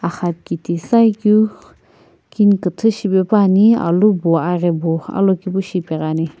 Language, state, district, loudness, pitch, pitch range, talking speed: Sumi, Nagaland, Kohima, -16 LUFS, 185 Hz, 170-210 Hz, 120 wpm